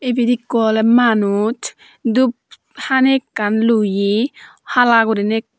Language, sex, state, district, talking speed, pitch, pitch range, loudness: Chakma, female, Tripura, Dhalai, 120 wpm, 230 Hz, 220-250 Hz, -16 LUFS